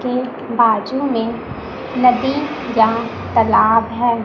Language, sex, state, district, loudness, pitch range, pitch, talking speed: Hindi, male, Chhattisgarh, Raipur, -17 LUFS, 230-250 Hz, 235 Hz, 100 wpm